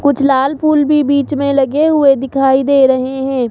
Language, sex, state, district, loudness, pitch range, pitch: Hindi, male, Rajasthan, Jaipur, -12 LUFS, 265-285 Hz, 275 Hz